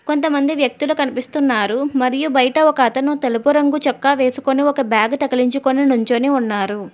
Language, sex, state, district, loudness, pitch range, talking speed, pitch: Telugu, female, Telangana, Hyderabad, -16 LUFS, 250-285 Hz, 140 wpm, 270 Hz